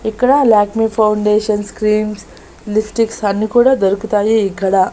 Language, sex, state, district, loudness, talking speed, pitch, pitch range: Telugu, female, Andhra Pradesh, Annamaya, -14 LUFS, 110 wpm, 215 Hz, 205-225 Hz